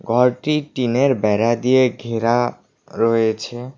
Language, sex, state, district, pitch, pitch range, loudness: Bengali, male, West Bengal, Cooch Behar, 120 Hz, 115-130 Hz, -18 LUFS